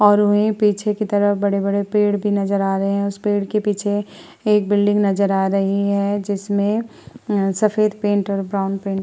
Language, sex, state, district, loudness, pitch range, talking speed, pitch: Hindi, female, Uttar Pradesh, Muzaffarnagar, -19 LUFS, 200-210 Hz, 205 wpm, 205 Hz